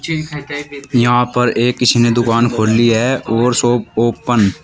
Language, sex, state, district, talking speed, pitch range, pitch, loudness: Hindi, male, Uttar Pradesh, Shamli, 155 wpm, 115-125 Hz, 120 Hz, -14 LUFS